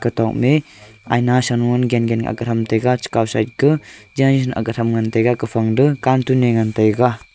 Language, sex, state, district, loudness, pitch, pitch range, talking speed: Wancho, male, Arunachal Pradesh, Longding, -17 LUFS, 120 Hz, 110-125 Hz, 165 wpm